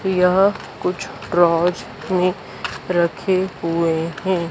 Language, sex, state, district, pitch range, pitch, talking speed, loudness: Hindi, female, Madhya Pradesh, Dhar, 170-190 Hz, 180 Hz, 95 wpm, -20 LUFS